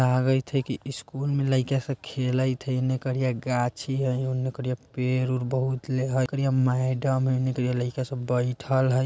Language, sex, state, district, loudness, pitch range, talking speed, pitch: Bajjika, male, Bihar, Vaishali, -26 LUFS, 125-130 Hz, 185 wpm, 130 Hz